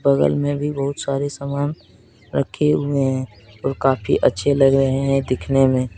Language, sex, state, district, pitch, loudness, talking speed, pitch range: Hindi, male, Jharkhand, Deoghar, 135 Hz, -20 LUFS, 170 wpm, 130-140 Hz